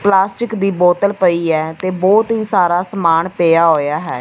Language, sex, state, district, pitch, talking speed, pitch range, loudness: Punjabi, female, Punjab, Fazilka, 180 Hz, 185 wpm, 165-200 Hz, -14 LUFS